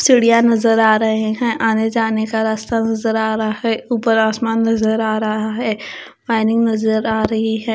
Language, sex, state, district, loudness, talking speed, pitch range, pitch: Hindi, female, Chandigarh, Chandigarh, -16 LUFS, 185 wpm, 220-225 Hz, 220 Hz